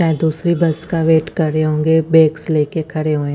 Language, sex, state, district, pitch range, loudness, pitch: Hindi, female, Chandigarh, Chandigarh, 155-160 Hz, -16 LUFS, 160 Hz